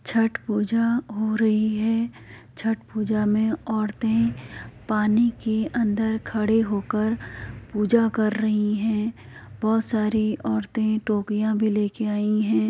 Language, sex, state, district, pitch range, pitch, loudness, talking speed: Hindi, female, Uttar Pradesh, Jyotiba Phule Nagar, 210-225 Hz, 215 Hz, -24 LUFS, 125 wpm